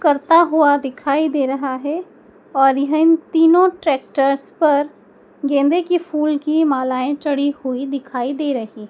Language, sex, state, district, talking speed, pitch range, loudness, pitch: Hindi, female, Madhya Pradesh, Dhar, 140 wpm, 270-315 Hz, -17 LUFS, 290 Hz